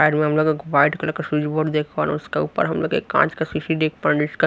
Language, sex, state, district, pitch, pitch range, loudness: Hindi, male, Haryana, Rohtak, 150 Hz, 150-155 Hz, -21 LUFS